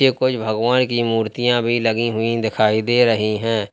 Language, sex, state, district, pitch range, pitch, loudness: Hindi, male, Uttar Pradesh, Lalitpur, 110-120 Hz, 115 Hz, -18 LUFS